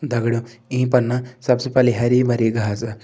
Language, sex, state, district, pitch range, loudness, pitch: Hindi, male, Uttarakhand, Tehri Garhwal, 115-125 Hz, -19 LUFS, 120 Hz